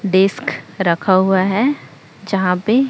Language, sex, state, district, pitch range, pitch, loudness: Hindi, male, Chhattisgarh, Raipur, 180-220 Hz, 190 Hz, -17 LUFS